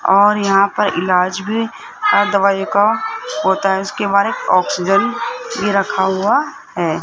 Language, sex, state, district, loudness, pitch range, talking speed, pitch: Hindi, female, Rajasthan, Jaipur, -16 LUFS, 190-215 Hz, 155 wpm, 200 Hz